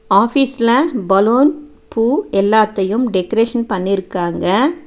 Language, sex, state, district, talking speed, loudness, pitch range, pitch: Tamil, female, Tamil Nadu, Nilgiris, 75 wpm, -15 LUFS, 195-255 Hz, 225 Hz